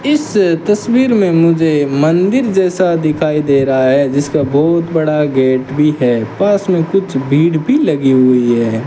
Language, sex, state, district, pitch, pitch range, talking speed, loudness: Hindi, male, Rajasthan, Bikaner, 155 Hz, 140-185 Hz, 160 wpm, -12 LUFS